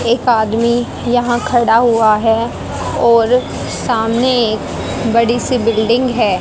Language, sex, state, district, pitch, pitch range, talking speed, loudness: Hindi, female, Haryana, Jhajjar, 235 Hz, 225-245 Hz, 120 wpm, -14 LUFS